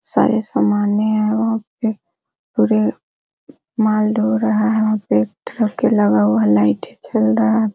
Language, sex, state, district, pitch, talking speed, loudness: Hindi, female, Bihar, Araria, 215 Hz, 75 wpm, -17 LUFS